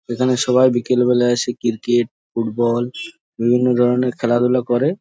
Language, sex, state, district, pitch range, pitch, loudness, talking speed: Bengali, male, West Bengal, Jhargram, 120-125 Hz, 120 Hz, -18 LUFS, 130 wpm